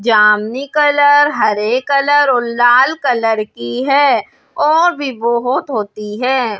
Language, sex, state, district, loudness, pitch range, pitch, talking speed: Hindi, female, Delhi, New Delhi, -13 LUFS, 220-285 Hz, 250 Hz, 125 wpm